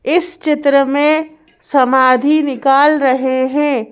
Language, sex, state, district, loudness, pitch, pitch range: Hindi, female, Madhya Pradesh, Bhopal, -13 LUFS, 280 Hz, 260-305 Hz